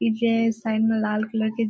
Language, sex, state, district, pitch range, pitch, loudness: Maithili, female, Bihar, Saharsa, 220-230 Hz, 220 Hz, -23 LUFS